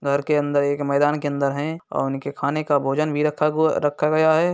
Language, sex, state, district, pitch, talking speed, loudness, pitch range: Hindi, male, Uttar Pradesh, Hamirpur, 145 Hz, 250 wpm, -21 LUFS, 140-155 Hz